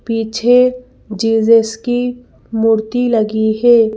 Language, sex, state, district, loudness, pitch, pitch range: Hindi, female, Madhya Pradesh, Bhopal, -14 LUFS, 225 Hz, 220-245 Hz